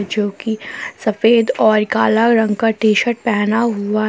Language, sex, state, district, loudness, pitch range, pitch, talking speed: Hindi, female, Jharkhand, Palamu, -16 LUFS, 215-230 Hz, 220 Hz, 160 wpm